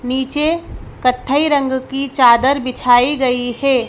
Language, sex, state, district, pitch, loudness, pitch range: Hindi, female, Madhya Pradesh, Bhopal, 260 Hz, -15 LUFS, 250-275 Hz